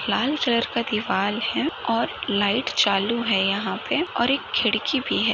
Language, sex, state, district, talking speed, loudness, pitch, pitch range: Hindi, female, Maharashtra, Chandrapur, 180 wpm, -23 LUFS, 230 Hz, 205-250 Hz